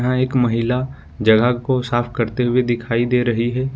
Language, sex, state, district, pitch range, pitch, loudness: Hindi, male, Jharkhand, Ranchi, 120-125 Hz, 120 Hz, -18 LUFS